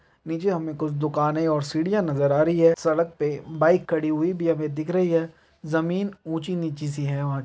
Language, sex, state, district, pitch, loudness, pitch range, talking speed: Hindi, male, Karnataka, Bijapur, 160 Hz, -24 LUFS, 150-170 Hz, 215 wpm